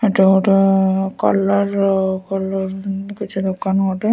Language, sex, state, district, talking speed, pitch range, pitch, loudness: Odia, female, Odisha, Nuapada, 130 wpm, 190-195 Hz, 195 Hz, -17 LUFS